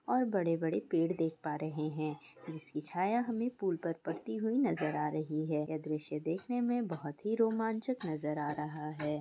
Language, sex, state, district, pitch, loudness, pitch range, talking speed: Hindi, female, Jharkhand, Sahebganj, 165 Hz, -35 LUFS, 150-220 Hz, 190 wpm